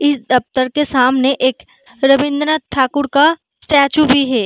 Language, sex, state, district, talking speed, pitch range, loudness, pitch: Hindi, female, Uttar Pradesh, Muzaffarnagar, 160 wpm, 255-290 Hz, -14 LUFS, 275 Hz